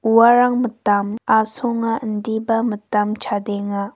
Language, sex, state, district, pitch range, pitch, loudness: Garo, female, Meghalaya, West Garo Hills, 210-230 Hz, 220 Hz, -19 LUFS